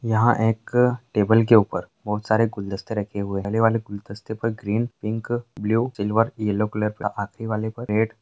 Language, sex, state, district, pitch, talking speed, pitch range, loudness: Hindi, male, Bihar, Jamui, 110 Hz, 195 wpm, 105-115 Hz, -23 LUFS